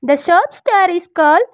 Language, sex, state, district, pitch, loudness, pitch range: English, female, Arunachal Pradesh, Lower Dibang Valley, 305 Hz, -13 LUFS, 275-350 Hz